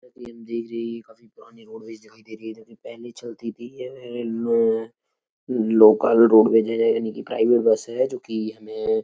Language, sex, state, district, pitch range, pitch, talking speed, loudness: Hindi, male, Uttar Pradesh, Etah, 110-120 Hz, 115 Hz, 145 wpm, -20 LUFS